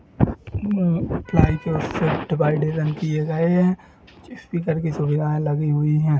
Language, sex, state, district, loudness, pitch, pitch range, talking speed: Hindi, male, Chhattisgarh, Rajnandgaon, -22 LUFS, 155 Hz, 150-170 Hz, 145 wpm